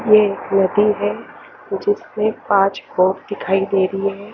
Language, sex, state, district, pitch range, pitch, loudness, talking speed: Hindi, female, Chandigarh, Chandigarh, 195-215 Hz, 205 Hz, -18 LUFS, 140 wpm